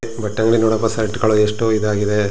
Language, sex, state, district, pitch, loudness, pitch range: Kannada, male, Karnataka, Chamarajanagar, 110 Hz, -17 LUFS, 105-115 Hz